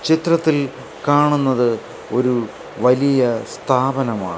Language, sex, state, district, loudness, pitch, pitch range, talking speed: Malayalam, male, Kerala, Kasaragod, -18 LUFS, 130 Hz, 120-145 Hz, 70 wpm